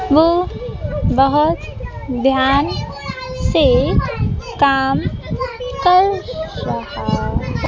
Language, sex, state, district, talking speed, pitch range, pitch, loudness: Hindi, female, Madhya Pradesh, Bhopal, 55 wpm, 270-380 Hz, 305 Hz, -17 LUFS